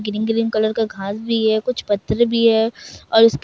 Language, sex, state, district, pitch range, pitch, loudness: Hindi, female, Bihar, Kishanganj, 215-230 Hz, 225 Hz, -18 LUFS